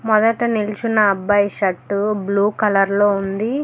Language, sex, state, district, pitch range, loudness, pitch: Telugu, female, Telangana, Hyderabad, 200-215 Hz, -18 LUFS, 205 Hz